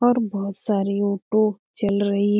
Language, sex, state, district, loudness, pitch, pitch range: Hindi, female, Bihar, Lakhisarai, -22 LUFS, 205 Hz, 200-215 Hz